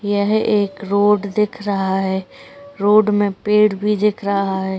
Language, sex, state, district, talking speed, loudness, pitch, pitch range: Hindi, female, Uttar Pradesh, Etah, 160 wpm, -17 LUFS, 205 Hz, 195-210 Hz